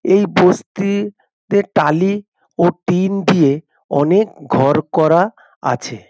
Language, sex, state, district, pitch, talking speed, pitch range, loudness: Bengali, male, West Bengal, North 24 Parganas, 185 Hz, 110 wpm, 160-200 Hz, -16 LUFS